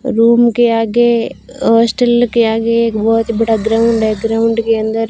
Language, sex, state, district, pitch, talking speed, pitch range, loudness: Hindi, female, Rajasthan, Barmer, 230 Hz, 165 wpm, 225-235 Hz, -13 LUFS